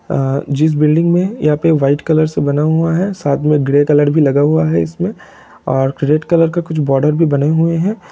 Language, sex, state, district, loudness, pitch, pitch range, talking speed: Hindi, male, Jharkhand, Sahebganj, -14 LUFS, 150 Hz, 140-165 Hz, 230 wpm